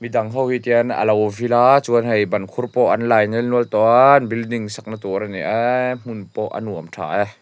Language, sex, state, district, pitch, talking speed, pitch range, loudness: Mizo, male, Mizoram, Aizawl, 115 Hz, 245 wpm, 105-120 Hz, -18 LUFS